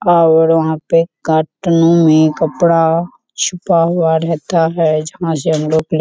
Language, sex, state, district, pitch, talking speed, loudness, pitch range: Hindi, female, Bihar, Kishanganj, 165 Hz, 170 wpm, -13 LUFS, 160-170 Hz